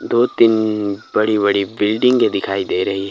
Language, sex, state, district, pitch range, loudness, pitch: Hindi, male, Himachal Pradesh, Shimla, 100-115 Hz, -16 LUFS, 105 Hz